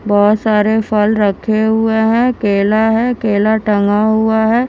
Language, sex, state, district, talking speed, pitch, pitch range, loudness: Hindi, female, Himachal Pradesh, Shimla, 155 wpm, 220 Hz, 210-220 Hz, -13 LUFS